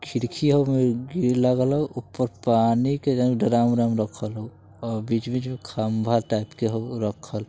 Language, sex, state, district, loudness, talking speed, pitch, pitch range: Bajjika, male, Bihar, Vaishali, -24 LUFS, 175 wpm, 120 Hz, 110-125 Hz